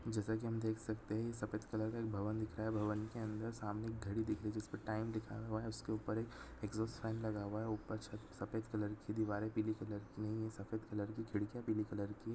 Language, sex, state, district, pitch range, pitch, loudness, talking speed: Hindi, male, Chhattisgarh, Sarguja, 105-110 Hz, 110 Hz, -43 LUFS, 260 wpm